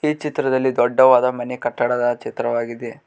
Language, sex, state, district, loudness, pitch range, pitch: Kannada, male, Karnataka, Koppal, -19 LUFS, 120-130 Hz, 125 Hz